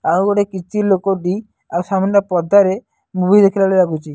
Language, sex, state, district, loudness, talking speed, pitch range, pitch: Odia, male, Odisha, Nuapada, -16 LUFS, 160 wpm, 180-200 Hz, 195 Hz